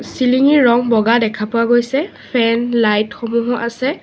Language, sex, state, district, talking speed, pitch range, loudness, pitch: Assamese, female, Assam, Sonitpur, 150 wpm, 230-250 Hz, -15 LUFS, 235 Hz